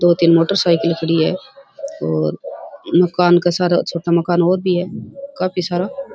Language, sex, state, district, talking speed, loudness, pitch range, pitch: Rajasthani, female, Rajasthan, Churu, 165 wpm, -17 LUFS, 170-185 Hz, 175 Hz